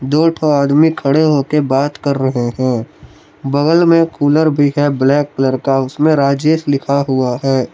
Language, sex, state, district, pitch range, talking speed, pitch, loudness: Hindi, male, Jharkhand, Palamu, 135-150 Hz, 180 wpm, 140 Hz, -14 LUFS